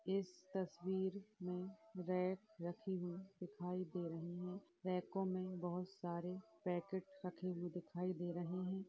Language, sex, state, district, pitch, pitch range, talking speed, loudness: Hindi, female, Uttar Pradesh, Jyotiba Phule Nagar, 180 Hz, 175-190 Hz, 155 wpm, -46 LUFS